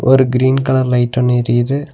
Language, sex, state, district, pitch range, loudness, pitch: Tamil, male, Tamil Nadu, Nilgiris, 125-130 Hz, -14 LUFS, 130 Hz